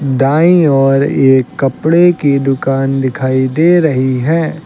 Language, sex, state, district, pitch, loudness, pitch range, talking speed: Hindi, male, Uttar Pradesh, Lucknow, 135 Hz, -11 LUFS, 135-160 Hz, 130 wpm